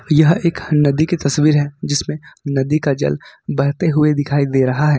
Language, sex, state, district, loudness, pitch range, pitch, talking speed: Hindi, male, Jharkhand, Ranchi, -17 LUFS, 140-155 Hz, 145 Hz, 190 wpm